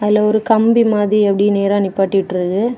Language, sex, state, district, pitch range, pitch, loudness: Tamil, female, Tamil Nadu, Kanyakumari, 195-215 Hz, 205 Hz, -14 LUFS